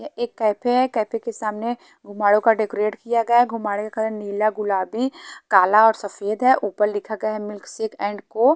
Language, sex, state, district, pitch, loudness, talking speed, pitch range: Hindi, female, Haryana, Charkhi Dadri, 215 Hz, -21 LUFS, 195 wpm, 210-230 Hz